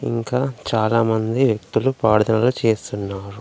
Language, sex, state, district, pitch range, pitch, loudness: Telugu, male, Telangana, Komaram Bheem, 110-125 Hz, 110 Hz, -20 LUFS